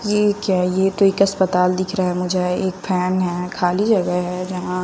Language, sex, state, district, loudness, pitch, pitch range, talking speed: Hindi, female, Bihar, West Champaran, -19 LUFS, 185 Hz, 180-195 Hz, 210 wpm